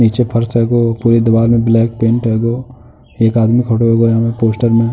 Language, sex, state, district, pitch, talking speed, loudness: Hindi, male, Uttar Pradesh, Jalaun, 115 Hz, 195 wpm, -13 LUFS